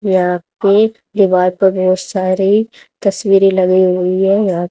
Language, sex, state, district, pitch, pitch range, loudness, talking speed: Hindi, female, Haryana, Jhajjar, 190 Hz, 185-200 Hz, -13 LUFS, 140 wpm